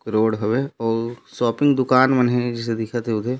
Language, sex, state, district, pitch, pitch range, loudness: Chhattisgarhi, male, Chhattisgarh, Raigarh, 120 Hz, 115-130 Hz, -20 LUFS